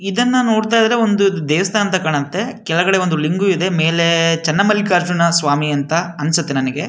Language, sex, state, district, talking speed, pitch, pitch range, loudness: Kannada, male, Karnataka, Shimoga, 150 wpm, 175 Hz, 160-200 Hz, -16 LUFS